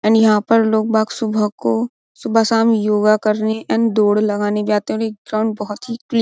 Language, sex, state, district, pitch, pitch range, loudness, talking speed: Hindi, female, Uttar Pradesh, Jyotiba Phule Nagar, 215 Hz, 210-225 Hz, -17 LUFS, 220 wpm